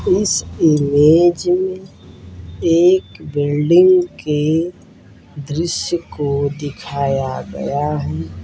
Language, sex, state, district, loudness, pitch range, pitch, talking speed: Hindi, male, Uttar Pradesh, Ghazipur, -16 LUFS, 140-175 Hz, 150 Hz, 80 wpm